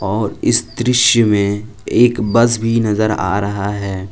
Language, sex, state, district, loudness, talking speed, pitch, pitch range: Hindi, male, Jharkhand, Palamu, -15 LUFS, 160 wpm, 105 Hz, 100-115 Hz